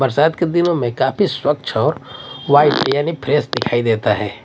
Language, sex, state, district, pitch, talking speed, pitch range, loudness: Hindi, male, Odisha, Nuapada, 140 Hz, 175 wpm, 125-155 Hz, -17 LUFS